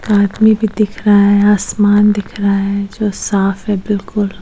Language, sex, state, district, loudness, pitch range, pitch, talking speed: Hindi, female, Uttar Pradesh, Hamirpur, -13 LUFS, 200-210 Hz, 205 Hz, 190 wpm